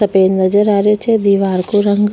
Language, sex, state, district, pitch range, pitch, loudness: Rajasthani, female, Rajasthan, Nagaur, 195-210 Hz, 205 Hz, -13 LUFS